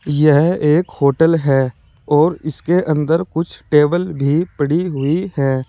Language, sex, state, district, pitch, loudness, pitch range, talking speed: Hindi, male, Uttar Pradesh, Saharanpur, 155 Hz, -16 LUFS, 145-170 Hz, 135 wpm